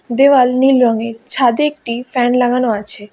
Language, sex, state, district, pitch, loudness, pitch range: Bengali, female, West Bengal, Alipurduar, 245 Hz, -14 LUFS, 235-260 Hz